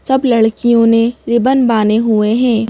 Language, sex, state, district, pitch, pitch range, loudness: Hindi, female, Madhya Pradesh, Bhopal, 230 Hz, 225-240 Hz, -12 LUFS